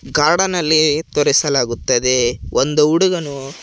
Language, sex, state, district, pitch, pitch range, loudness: Kannada, male, Karnataka, Koppal, 150 Hz, 135-160 Hz, -15 LUFS